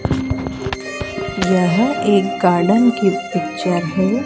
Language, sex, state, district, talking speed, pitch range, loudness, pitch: Hindi, female, Madhya Pradesh, Dhar, 85 wpm, 175-220 Hz, -17 LUFS, 185 Hz